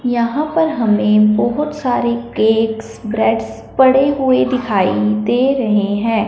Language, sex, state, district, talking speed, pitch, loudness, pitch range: Hindi, male, Punjab, Fazilka, 125 wpm, 230 Hz, -15 LUFS, 210-260 Hz